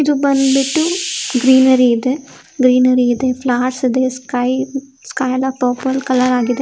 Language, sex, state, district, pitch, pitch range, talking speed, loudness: Kannada, female, Karnataka, Shimoga, 260 Hz, 250-270 Hz, 125 wpm, -15 LUFS